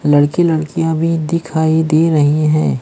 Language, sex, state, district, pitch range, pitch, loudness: Hindi, male, Maharashtra, Gondia, 150-165 Hz, 160 Hz, -14 LUFS